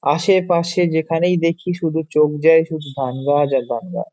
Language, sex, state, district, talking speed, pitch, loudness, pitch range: Bengali, male, West Bengal, Malda, 175 wpm, 160 Hz, -18 LUFS, 145-170 Hz